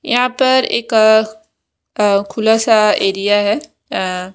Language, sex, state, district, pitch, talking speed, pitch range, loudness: Hindi, female, Maharashtra, Gondia, 220 Hz, 125 wpm, 200-245 Hz, -14 LUFS